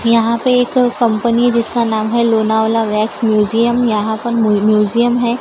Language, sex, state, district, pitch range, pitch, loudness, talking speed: Hindi, female, Maharashtra, Gondia, 220-235 Hz, 230 Hz, -14 LUFS, 155 wpm